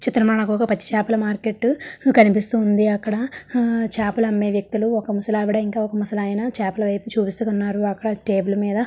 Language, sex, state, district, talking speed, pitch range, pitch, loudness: Telugu, female, Andhra Pradesh, Srikakulam, 185 wpm, 205-225 Hz, 215 Hz, -20 LUFS